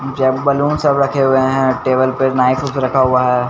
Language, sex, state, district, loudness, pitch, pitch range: Hindi, male, Bihar, Patna, -14 LUFS, 130 Hz, 130-140 Hz